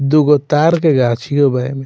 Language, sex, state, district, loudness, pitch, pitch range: Bhojpuri, male, Bihar, Muzaffarpur, -13 LUFS, 140 Hz, 135-150 Hz